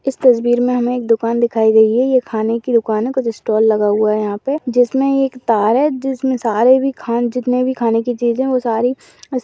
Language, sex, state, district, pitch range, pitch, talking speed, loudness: Hindi, female, Maharashtra, Solapur, 225-255 Hz, 245 Hz, 255 wpm, -15 LUFS